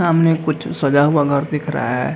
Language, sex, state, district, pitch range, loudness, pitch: Hindi, male, Bihar, Gaya, 140-160 Hz, -17 LUFS, 150 Hz